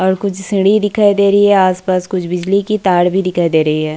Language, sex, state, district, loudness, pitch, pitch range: Hindi, female, Bihar, Kishanganj, -13 LUFS, 190 Hz, 180-200 Hz